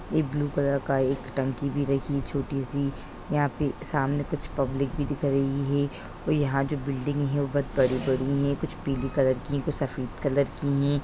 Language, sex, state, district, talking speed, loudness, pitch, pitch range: Hindi, female, Bihar, Sitamarhi, 205 wpm, -27 LUFS, 140 Hz, 135-145 Hz